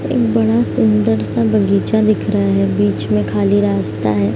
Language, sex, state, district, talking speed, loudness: Hindi, female, Bihar, Araria, 165 wpm, -15 LUFS